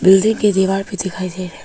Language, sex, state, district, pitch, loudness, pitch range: Hindi, female, Arunachal Pradesh, Papum Pare, 190 Hz, -17 LUFS, 185-195 Hz